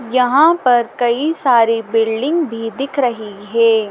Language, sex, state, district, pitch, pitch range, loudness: Hindi, female, Madhya Pradesh, Dhar, 240 Hz, 225-270 Hz, -15 LUFS